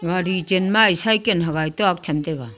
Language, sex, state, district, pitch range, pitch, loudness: Wancho, female, Arunachal Pradesh, Longding, 160-190 Hz, 180 Hz, -19 LUFS